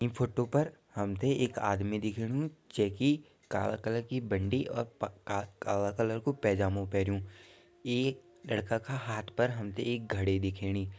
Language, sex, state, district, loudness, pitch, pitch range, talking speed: Garhwali, male, Uttarakhand, Tehri Garhwal, -33 LUFS, 110 Hz, 100-125 Hz, 160 wpm